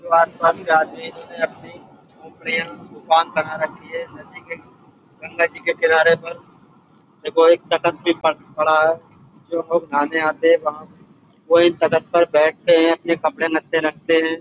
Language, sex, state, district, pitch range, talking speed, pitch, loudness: Hindi, male, Uttar Pradesh, Budaun, 160-170 Hz, 175 wpm, 165 Hz, -18 LUFS